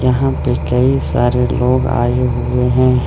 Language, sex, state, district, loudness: Hindi, male, Arunachal Pradesh, Lower Dibang Valley, -15 LUFS